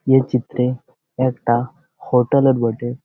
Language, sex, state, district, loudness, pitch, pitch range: Bengali, male, West Bengal, Jalpaiguri, -18 LUFS, 125 Hz, 120-130 Hz